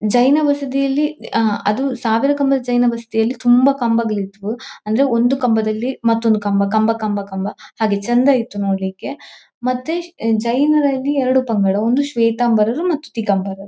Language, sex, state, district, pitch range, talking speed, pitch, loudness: Kannada, female, Karnataka, Dakshina Kannada, 215-270 Hz, 130 wpm, 235 Hz, -17 LUFS